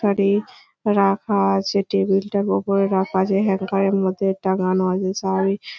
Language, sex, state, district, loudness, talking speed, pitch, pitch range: Bengali, female, West Bengal, Malda, -20 LUFS, 135 wpm, 195 Hz, 190-200 Hz